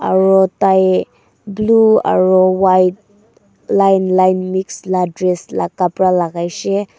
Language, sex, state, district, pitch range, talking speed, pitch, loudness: Nagamese, female, Nagaland, Kohima, 185-195 Hz, 110 wpm, 185 Hz, -14 LUFS